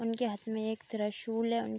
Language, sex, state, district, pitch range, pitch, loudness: Hindi, female, Uttar Pradesh, Budaun, 215-230 Hz, 225 Hz, -35 LUFS